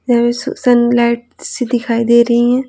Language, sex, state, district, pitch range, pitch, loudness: Hindi, female, Bihar, Patna, 235-245 Hz, 240 Hz, -13 LUFS